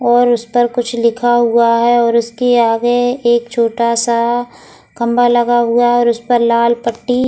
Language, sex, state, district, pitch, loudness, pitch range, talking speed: Hindi, female, Goa, North and South Goa, 240 Hz, -13 LUFS, 235-240 Hz, 190 wpm